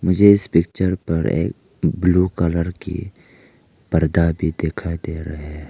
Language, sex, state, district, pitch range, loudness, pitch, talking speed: Hindi, male, Arunachal Pradesh, Lower Dibang Valley, 80-95 Hz, -19 LUFS, 85 Hz, 150 wpm